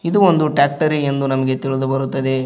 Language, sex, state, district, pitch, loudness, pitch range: Kannada, male, Karnataka, Koppal, 135 Hz, -17 LUFS, 135-155 Hz